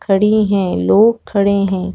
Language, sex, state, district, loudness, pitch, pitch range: Hindi, female, Chhattisgarh, Rajnandgaon, -14 LUFS, 200 Hz, 190-210 Hz